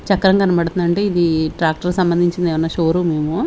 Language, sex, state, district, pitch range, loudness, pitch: Telugu, female, Andhra Pradesh, Sri Satya Sai, 165-180 Hz, -17 LUFS, 175 Hz